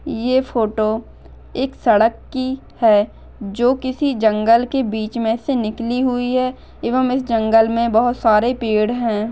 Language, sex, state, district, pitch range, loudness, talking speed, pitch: Hindi, female, Maharashtra, Nagpur, 220-255 Hz, -18 LUFS, 155 wpm, 235 Hz